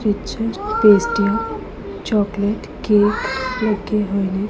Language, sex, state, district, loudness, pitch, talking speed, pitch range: Punjabi, female, Punjab, Pathankot, -18 LUFS, 210 Hz, 80 wpm, 205-225 Hz